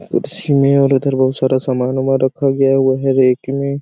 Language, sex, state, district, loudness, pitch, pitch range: Hindi, male, Chhattisgarh, Sarguja, -14 LUFS, 135 Hz, 130-140 Hz